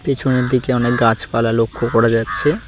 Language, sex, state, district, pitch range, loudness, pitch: Bengali, male, West Bengal, Cooch Behar, 115-130 Hz, -16 LUFS, 120 Hz